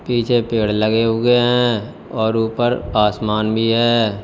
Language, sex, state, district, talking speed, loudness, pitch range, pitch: Hindi, male, Uttar Pradesh, Lalitpur, 140 wpm, -17 LUFS, 110-120 Hz, 115 Hz